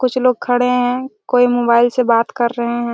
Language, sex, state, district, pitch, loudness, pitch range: Hindi, female, Chhattisgarh, Raigarh, 245 Hz, -15 LUFS, 235-250 Hz